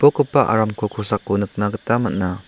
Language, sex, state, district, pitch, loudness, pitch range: Garo, male, Meghalaya, West Garo Hills, 105 Hz, -20 LUFS, 100-120 Hz